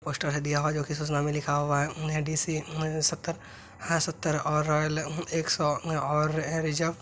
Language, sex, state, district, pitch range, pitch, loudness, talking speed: Hindi, male, Bihar, Madhepura, 150-160 Hz, 155 Hz, -28 LUFS, 220 wpm